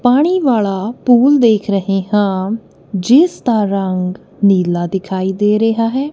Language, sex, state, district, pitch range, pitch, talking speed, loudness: Punjabi, female, Punjab, Kapurthala, 190-245 Hz, 210 Hz, 125 wpm, -14 LUFS